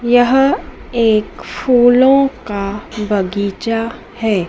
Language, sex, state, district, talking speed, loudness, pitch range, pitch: Hindi, female, Madhya Pradesh, Dhar, 80 wpm, -15 LUFS, 205-250 Hz, 230 Hz